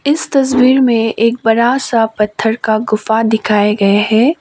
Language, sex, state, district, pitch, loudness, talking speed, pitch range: Hindi, female, Sikkim, Gangtok, 225 Hz, -12 LUFS, 165 wpm, 220-250 Hz